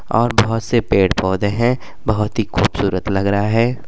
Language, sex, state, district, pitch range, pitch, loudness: Bhojpuri, male, Uttar Pradesh, Gorakhpur, 100-115 Hz, 110 Hz, -17 LUFS